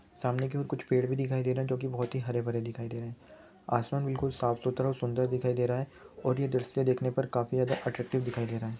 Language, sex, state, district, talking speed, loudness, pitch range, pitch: Hindi, male, Chhattisgarh, Bilaspur, 280 wpm, -32 LUFS, 120-130 Hz, 125 Hz